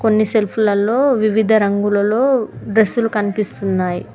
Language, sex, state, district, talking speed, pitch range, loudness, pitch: Telugu, female, Telangana, Mahabubabad, 115 wpm, 205-225 Hz, -16 LUFS, 215 Hz